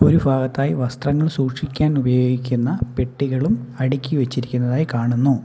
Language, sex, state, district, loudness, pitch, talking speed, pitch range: Malayalam, male, Kerala, Kollam, -20 LUFS, 130 Hz, 110 wpm, 125-140 Hz